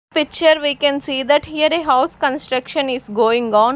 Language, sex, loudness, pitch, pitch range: English, female, -17 LUFS, 285 Hz, 255-305 Hz